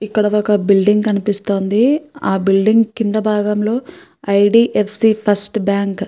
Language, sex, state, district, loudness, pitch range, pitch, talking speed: Telugu, female, Andhra Pradesh, Guntur, -15 LUFS, 200-220 Hz, 210 Hz, 160 wpm